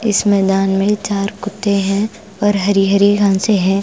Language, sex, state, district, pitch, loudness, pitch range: Hindi, female, Bihar, Patna, 200 Hz, -15 LUFS, 195-205 Hz